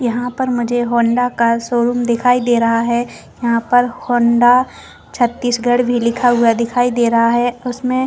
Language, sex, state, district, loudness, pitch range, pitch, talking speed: Hindi, female, Chhattisgarh, Bastar, -15 LUFS, 235-245 Hz, 240 Hz, 170 wpm